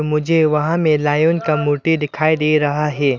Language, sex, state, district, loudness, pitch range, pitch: Hindi, male, Arunachal Pradesh, Lower Dibang Valley, -16 LUFS, 150-160 Hz, 150 Hz